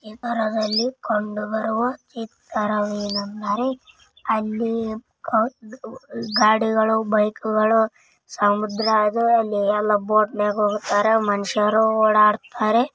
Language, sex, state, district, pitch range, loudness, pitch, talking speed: Kannada, male, Karnataka, Dakshina Kannada, 210-225 Hz, -21 LUFS, 220 Hz, 75 wpm